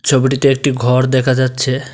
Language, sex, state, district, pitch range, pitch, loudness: Bengali, male, Tripura, Dhalai, 130-135 Hz, 130 Hz, -14 LUFS